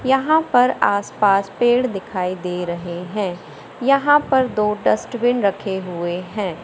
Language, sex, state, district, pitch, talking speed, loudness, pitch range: Hindi, male, Madhya Pradesh, Katni, 205 Hz, 135 wpm, -19 LUFS, 180-250 Hz